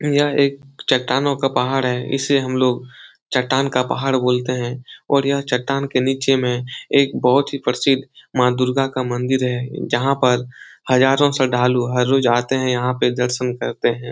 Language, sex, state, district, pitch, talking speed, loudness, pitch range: Hindi, male, Uttar Pradesh, Etah, 130 Hz, 180 wpm, -19 LUFS, 125-135 Hz